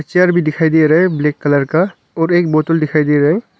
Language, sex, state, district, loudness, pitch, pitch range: Hindi, male, Arunachal Pradesh, Longding, -14 LUFS, 160 Hz, 150-175 Hz